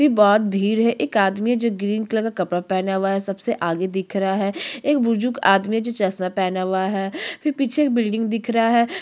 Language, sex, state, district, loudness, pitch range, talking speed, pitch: Hindi, female, Chhattisgarh, Korba, -21 LUFS, 195-235 Hz, 240 wpm, 210 Hz